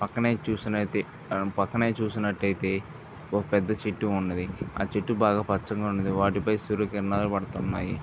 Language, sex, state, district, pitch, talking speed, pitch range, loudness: Telugu, male, Andhra Pradesh, Visakhapatnam, 105 Hz, 135 wpm, 100-110 Hz, -28 LUFS